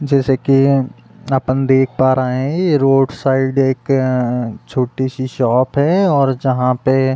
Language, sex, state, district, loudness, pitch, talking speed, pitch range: Hindi, male, Uttar Pradesh, Deoria, -15 LUFS, 130 Hz, 160 wpm, 130-135 Hz